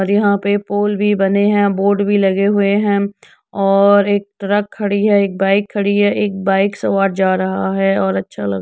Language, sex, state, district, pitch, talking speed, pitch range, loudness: Hindi, female, Uttar Pradesh, Jyotiba Phule Nagar, 200 Hz, 200 wpm, 195-205 Hz, -15 LUFS